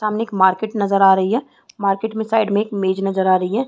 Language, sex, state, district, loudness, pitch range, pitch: Hindi, female, Chhattisgarh, Rajnandgaon, -18 LUFS, 190-220 Hz, 200 Hz